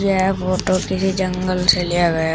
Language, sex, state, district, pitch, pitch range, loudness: Hindi, female, Uttar Pradesh, Shamli, 185 Hz, 180-190 Hz, -18 LUFS